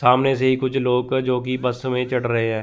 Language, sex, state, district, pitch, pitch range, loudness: Hindi, male, Chandigarh, Chandigarh, 125 Hz, 125-130 Hz, -21 LUFS